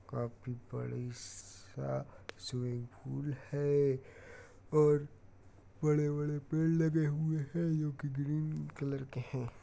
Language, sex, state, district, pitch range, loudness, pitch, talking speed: Hindi, male, Uttar Pradesh, Jyotiba Phule Nagar, 105-150 Hz, -35 LUFS, 135 Hz, 100 wpm